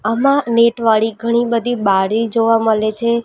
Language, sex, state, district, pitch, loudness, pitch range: Gujarati, female, Gujarat, Valsad, 230 Hz, -15 LUFS, 220-235 Hz